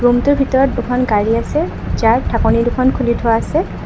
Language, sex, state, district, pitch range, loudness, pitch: Assamese, female, Assam, Kamrup Metropolitan, 230-260 Hz, -15 LUFS, 245 Hz